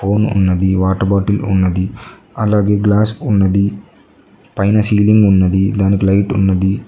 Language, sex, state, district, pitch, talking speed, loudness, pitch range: Telugu, male, Telangana, Mahabubabad, 100 Hz, 120 wpm, -14 LUFS, 95-105 Hz